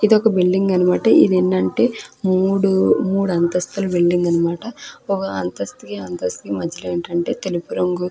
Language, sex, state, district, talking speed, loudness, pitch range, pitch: Telugu, female, Andhra Pradesh, Krishna, 140 wpm, -18 LUFS, 135-195 Hz, 180 Hz